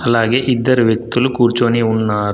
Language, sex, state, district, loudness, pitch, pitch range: Telugu, male, Telangana, Adilabad, -15 LUFS, 120 Hz, 110-125 Hz